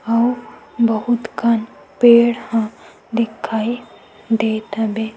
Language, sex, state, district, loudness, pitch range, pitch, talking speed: Chhattisgarhi, female, Chhattisgarh, Sukma, -18 LUFS, 220-235 Hz, 230 Hz, 95 wpm